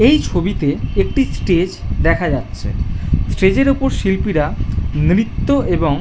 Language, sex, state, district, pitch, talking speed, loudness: Bengali, male, West Bengal, Jhargram, 100 Hz, 130 wpm, -17 LUFS